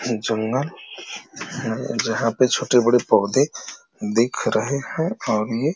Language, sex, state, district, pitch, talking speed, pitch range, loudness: Hindi, male, Uttar Pradesh, Ghazipur, 120 Hz, 145 wpm, 110-140 Hz, -21 LUFS